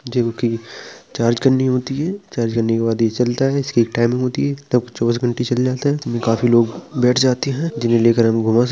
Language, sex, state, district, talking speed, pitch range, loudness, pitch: Hindi, male, Uttar Pradesh, Jalaun, 270 wpm, 115-130 Hz, -18 LUFS, 120 Hz